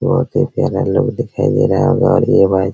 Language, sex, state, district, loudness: Hindi, male, Bihar, Araria, -14 LUFS